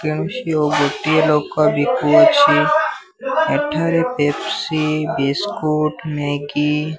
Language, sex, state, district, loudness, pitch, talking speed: Odia, male, Odisha, Sambalpur, -17 LUFS, 155 Hz, 105 wpm